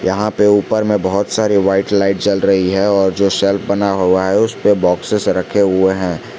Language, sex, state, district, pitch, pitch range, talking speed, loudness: Hindi, male, Jharkhand, Garhwa, 100 Hz, 95-105 Hz, 215 wpm, -14 LUFS